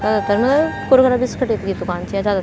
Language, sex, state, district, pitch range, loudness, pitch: Garhwali, female, Uttarakhand, Tehri Garhwal, 205-255 Hz, -17 LUFS, 215 Hz